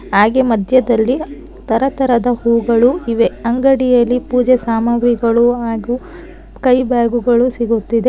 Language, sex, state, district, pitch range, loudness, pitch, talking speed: Kannada, female, Karnataka, Bangalore, 235-255 Hz, -14 LUFS, 240 Hz, 90 wpm